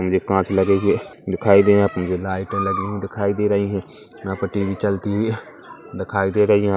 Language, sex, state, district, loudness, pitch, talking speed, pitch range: Hindi, male, Chhattisgarh, Kabirdham, -20 LUFS, 100 Hz, 220 wpm, 95-100 Hz